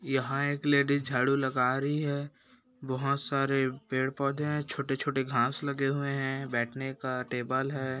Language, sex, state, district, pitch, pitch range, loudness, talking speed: Hindi, male, Chhattisgarh, Bastar, 135 Hz, 130-140 Hz, -30 LUFS, 155 wpm